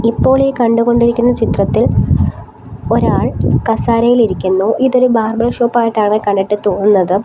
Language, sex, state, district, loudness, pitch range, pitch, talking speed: Malayalam, female, Kerala, Kollam, -13 LUFS, 210-240 Hz, 230 Hz, 100 wpm